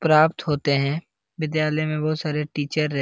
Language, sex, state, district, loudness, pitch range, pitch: Hindi, male, Bihar, Lakhisarai, -23 LUFS, 150-155 Hz, 155 Hz